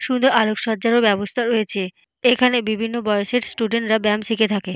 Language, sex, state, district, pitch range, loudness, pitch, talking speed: Bengali, female, Jharkhand, Jamtara, 210-240 Hz, -19 LUFS, 225 Hz, 165 wpm